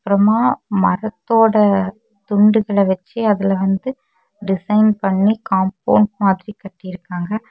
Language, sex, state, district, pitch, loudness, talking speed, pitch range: Tamil, female, Tamil Nadu, Kanyakumari, 205 Hz, -16 LUFS, 90 wpm, 195-220 Hz